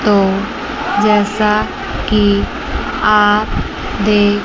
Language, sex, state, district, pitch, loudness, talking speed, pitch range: Hindi, male, Chandigarh, Chandigarh, 210 Hz, -14 LUFS, 65 wpm, 205-210 Hz